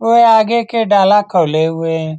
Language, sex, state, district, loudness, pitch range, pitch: Hindi, male, Bihar, Saran, -12 LUFS, 165-225 Hz, 205 Hz